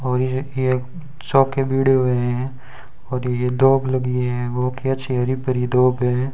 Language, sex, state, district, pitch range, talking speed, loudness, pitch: Hindi, male, Rajasthan, Bikaner, 125-135 Hz, 180 wpm, -20 LUFS, 130 Hz